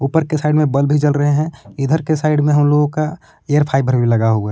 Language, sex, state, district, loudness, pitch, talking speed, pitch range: Hindi, male, Jharkhand, Palamu, -16 LUFS, 145 Hz, 290 wpm, 135-155 Hz